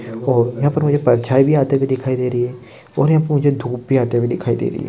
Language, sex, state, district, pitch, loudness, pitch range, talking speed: Hindi, male, Maharashtra, Sindhudurg, 130 Hz, -17 LUFS, 120-140 Hz, 295 wpm